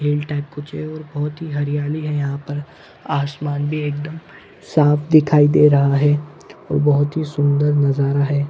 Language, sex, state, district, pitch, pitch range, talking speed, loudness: Hindi, male, Chhattisgarh, Bilaspur, 145 Hz, 145-150 Hz, 160 wpm, -18 LUFS